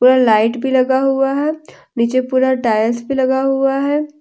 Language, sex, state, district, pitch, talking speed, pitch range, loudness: Hindi, female, Jharkhand, Deoghar, 260 Hz, 185 wpm, 250-270 Hz, -15 LUFS